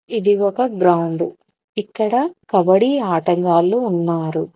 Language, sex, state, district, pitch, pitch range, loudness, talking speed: Telugu, female, Telangana, Hyderabad, 190 Hz, 170-225 Hz, -17 LUFS, 90 wpm